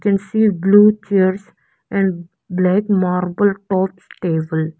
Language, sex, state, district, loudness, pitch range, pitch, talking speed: English, female, Arunachal Pradesh, Lower Dibang Valley, -17 LUFS, 180-200 Hz, 190 Hz, 125 wpm